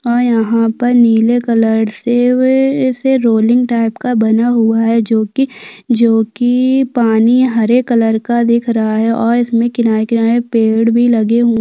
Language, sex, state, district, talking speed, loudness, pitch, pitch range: Hindi, female, Chhattisgarh, Sukma, 160 wpm, -12 LUFS, 235 Hz, 225-245 Hz